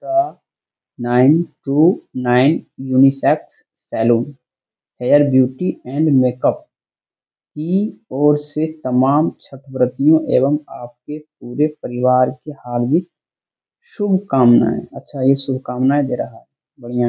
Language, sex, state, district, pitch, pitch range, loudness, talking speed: Hindi, male, Bihar, Jamui, 135 Hz, 125-150 Hz, -17 LUFS, 105 wpm